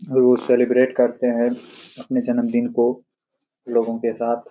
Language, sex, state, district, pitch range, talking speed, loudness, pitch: Hindi, male, Jharkhand, Jamtara, 120-130 Hz, 145 wpm, -20 LUFS, 125 Hz